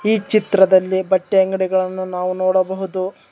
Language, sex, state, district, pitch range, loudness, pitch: Kannada, male, Karnataka, Bangalore, 185-190 Hz, -17 LUFS, 190 Hz